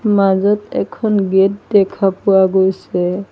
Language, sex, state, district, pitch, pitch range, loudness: Assamese, female, Assam, Sonitpur, 195 Hz, 190-205 Hz, -15 LUFS